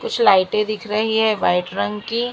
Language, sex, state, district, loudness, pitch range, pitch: Hindi, female, Maharashtra, Mumbai Suburban, -19 LUFS, 210-225 Hz, 215 Hz